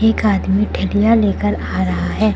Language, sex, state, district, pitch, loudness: Hindi, female, Uttar Pradesh, Lucknow, 205 Hz, -16 LUFS